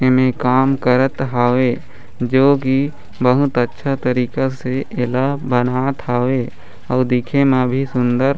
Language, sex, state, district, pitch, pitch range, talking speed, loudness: Chhattisgarhi, male, Chhattisgarh, Raigarh, 130 Hz, 125-135 Hz, 130 wpm, -17 LUFS